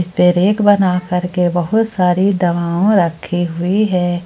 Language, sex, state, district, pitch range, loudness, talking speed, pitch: Hindi, female, Jharkhand, Ranchi, 175-195 Hz, -15 LUFS, 140 wpm, 180 Hz